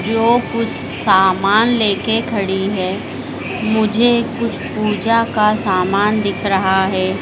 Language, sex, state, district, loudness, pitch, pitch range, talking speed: Hindi, female, Madhya Pradesh, Dhar, -16 LUFS, 210 Hz, 195-230 Hz, 115 wpm